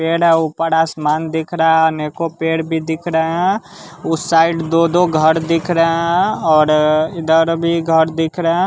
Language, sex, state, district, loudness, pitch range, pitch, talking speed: Hindi, male, Bihar, West Champaran, -15 LUFS, 160-165 Hz, 165 Hz, 185 wpm